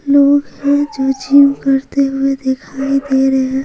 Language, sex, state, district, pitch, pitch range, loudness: Hindi, female, Bihar, Patna, 275 Hz, 270-280 Hz, -14 LUFS